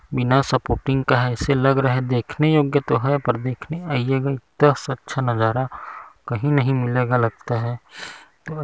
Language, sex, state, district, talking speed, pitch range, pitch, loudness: Hindi, male, Chhattisgarh, Kabirdham, 160 wpm, 125-140 Hz, 130 Hz, -21 LUFS